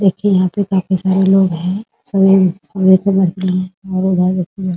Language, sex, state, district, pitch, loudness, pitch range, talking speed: Hindi, female, Bihar, Muzaffarpur, 190 Hz, -14 LUFS, 185-195 Hz, 100 wpm